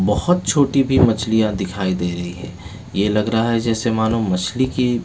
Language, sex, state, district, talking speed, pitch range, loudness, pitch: Hindi, male, Bihar, West Champaran, 190 wpm, 95-125 Hz, -18 LUFS, 110 Hz